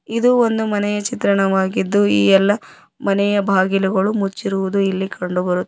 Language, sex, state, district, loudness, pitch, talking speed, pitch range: Kannada, female, Karnataka, Koppal, -17 LUFS, 195 Hz, 125 wpm, 190-205 Hz